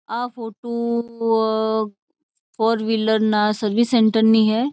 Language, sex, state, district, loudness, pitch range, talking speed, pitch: Marwari, female, Rajasthan, Churu, -19 LUFS, 220-235 Hz, 150 wpm, 225 Hz